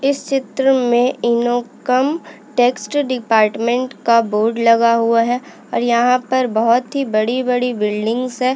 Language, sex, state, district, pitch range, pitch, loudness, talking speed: Hindi, female, Uttarakhand, Uttarkashi, 230-255 Hz, 245 Hz, -16 LUFS, 140 wpm